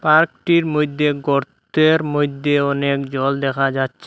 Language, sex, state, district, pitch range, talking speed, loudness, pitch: Bengali, male, Assam, Hailakandi, 140-155 Hz, 120 wpm, -18 LUFS, 145 Hz